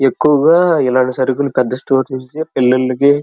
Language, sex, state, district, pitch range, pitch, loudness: Telugu, male, Andhra Pradesh, Krishna, 130-145 Hz, 130 Hz, -14 LUFS